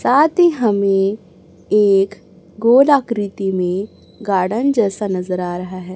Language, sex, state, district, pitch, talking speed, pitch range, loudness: Hindi, male, Chhattisgarh, Raipur, 200 Hz, 130 wpm, 185-230 Hz, -16 LUFS